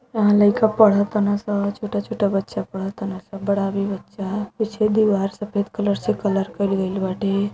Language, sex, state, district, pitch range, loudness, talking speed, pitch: Bhojpuri, female, Uttar Pradesh, Deoria, 195-210 Hz, -21 LUFS, 190 wpm, 205 Hz